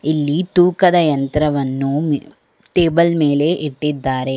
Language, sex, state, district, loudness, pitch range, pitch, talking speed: Kannada, female, Karnataka, Bangalore, -16 LUFS, 140-170 Hz, 150 Hz, 95 wpm